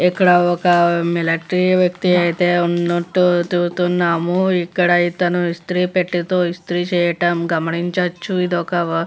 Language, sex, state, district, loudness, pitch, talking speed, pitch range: Telugu, female, Andhra Pradesh, Visakhapatnam, -17 LUFS, 175 Hz, 110 wpm, 175-180 Hz